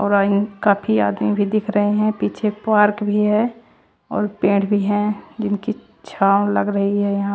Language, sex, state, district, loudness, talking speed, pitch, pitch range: Hindi, female, Chandigarh, Chandigarh, -19 LUFS, 165 wpm, 205 Hz, 200-210 Hz